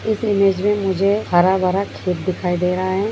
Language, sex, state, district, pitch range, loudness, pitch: Hindi, female, Bihar, Begusarai, 185-200 Hz, -18 LUFS, 190 Hz